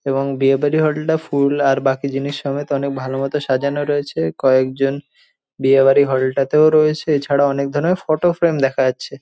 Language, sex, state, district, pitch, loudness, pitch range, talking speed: Bengali, male, West Bengal, Jhargram, 140 Hz, -17 LUFS, 135-150 Hz, 170 wpm